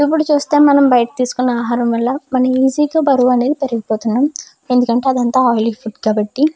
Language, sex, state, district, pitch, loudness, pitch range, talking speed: Telugu, female, Andhra Pradesh, Chittoor, 255 Hz, -15 LUFS, 235-285 Hz, 145 wpm